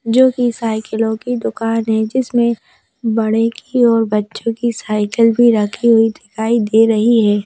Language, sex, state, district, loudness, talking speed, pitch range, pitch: Hindi, female, Madhya Pradesh, Bhopal, -15 LUFS, 160 wpm, 220-235 Hz, 225 Hz